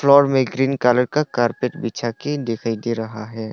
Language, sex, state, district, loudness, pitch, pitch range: Hindi, male, Arunachal Pradesh, Longding, -20 LUFS, 120 Hz, 115-135 Hz